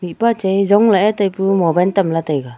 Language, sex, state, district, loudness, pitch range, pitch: Wancho, female, Arunachal Pradesh, Longding, -15 LUFS, 170-205 Hz, 190 Hz